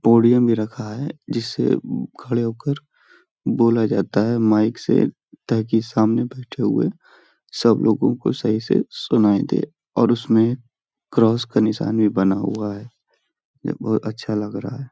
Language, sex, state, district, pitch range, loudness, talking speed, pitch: Hindi, male, Uttar Pradesh, Hamirpur, 110-120 Hz, -20 LUFS, 150 wpm, 115 Hz